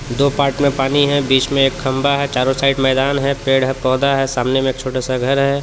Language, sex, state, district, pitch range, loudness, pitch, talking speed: Hindi, male, Jharkhand, Palamu, 130-140 Hz, -16 LUFS, 135 Hz, 265 wpm